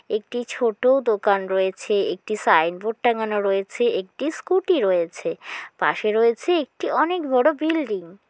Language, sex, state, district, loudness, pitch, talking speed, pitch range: Bengali, female, West Bengal, Kolkata, -22 LUFS, 230 Hz, 130 wpm, 200-305 Hz